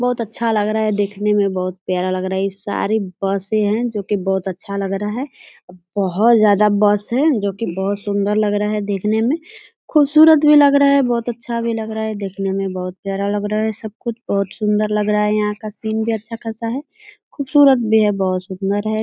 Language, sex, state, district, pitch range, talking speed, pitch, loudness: Hindi, female, Bihar, Purnia, 200-230 Hz, 235 wpm, 210 Hz, -18 LUFS